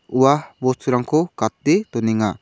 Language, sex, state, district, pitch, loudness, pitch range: Garo, male, Meghalaya, South Garo Hills, 130 Hz, -19 LUFS, 110-150 Hz